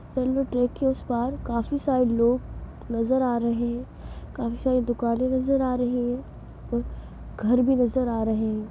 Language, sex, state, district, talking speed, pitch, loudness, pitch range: Hindi, female, Bihar, Sitamarhi, 170 wpm, 245 Hz, -25 LUFS, 235-260 Hz